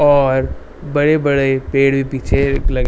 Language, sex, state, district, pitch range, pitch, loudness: Hindi, male, Bihar, Darbhanga, 135-145 Hz, 135 Hz, -15 LUFS